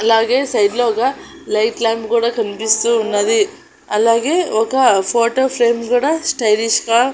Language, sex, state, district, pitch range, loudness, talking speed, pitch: Telugu, female, Andhra Pradesh, Annamaya, 225-260 Hz, -15 LUFS, 135 wpm, 235 Hz